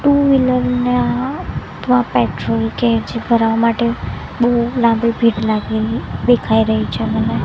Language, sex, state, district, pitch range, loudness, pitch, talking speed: Gujarati, female, Gujarat, Gandhinagar, 215-245 Hz, -16 LUFS, 230 Hz, 135 wpm